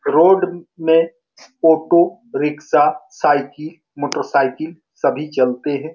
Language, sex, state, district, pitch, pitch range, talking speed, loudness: Hindi, male, Bihar, Saran, 160 Hz, 150-170 Hz, 110 wpm, -17 LUFS